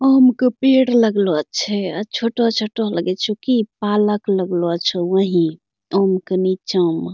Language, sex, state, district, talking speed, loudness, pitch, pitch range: Angika, female, Bihar, Bhagalpur, 150 wpm, -18 LUFS, 205 Hz, 185-230 Hz